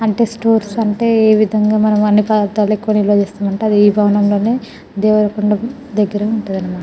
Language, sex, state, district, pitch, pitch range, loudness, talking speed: Telugu, female, Telangana, Nalgonda, 210 Hz, 205-220 Hz, -14 LUFS, 185 wpm